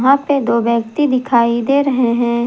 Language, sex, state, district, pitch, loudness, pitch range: Hindi, female, Jharkhand, Garhwa, 245 Hz, -15 LUFS, 235-275 Hz